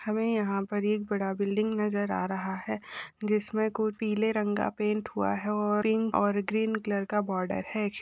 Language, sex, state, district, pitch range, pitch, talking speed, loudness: Hindi, female, Uttar Pradesh, Etah, 200-215 Hz, 210 Hz, 195 wpm, -29 LUFS